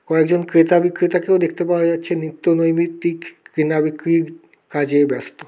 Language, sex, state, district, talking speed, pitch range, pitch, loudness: Bengali, male, West Bengal, Kolkata, 130 wpm, 160-175 Hz, 165 Hz, -18 LUFS